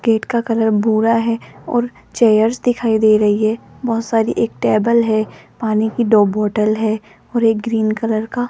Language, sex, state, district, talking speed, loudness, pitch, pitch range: Hindi, female, Rajasthan, Jaipur, 190 wpm, -16 LUFS, 225 Hz, 215-230 Hz